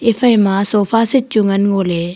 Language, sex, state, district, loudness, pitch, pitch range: Wancho, female, Arunachal Pradesh, Longding, -14 LUFS, 205 Hz, 195-230 Hz